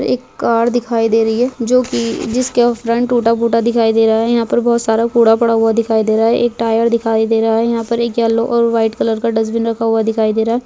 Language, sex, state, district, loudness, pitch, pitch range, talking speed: Hindi, female, Bihar, Darbhanga, -14 LUFS, 230 Hz, 225-235 Hz, 275 wpm